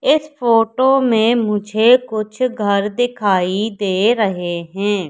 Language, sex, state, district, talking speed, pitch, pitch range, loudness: Hindi, female, Madhya Pradesh, Katni, 105 wpm, 215 Hz, 200-245 Hz, -16 LUFS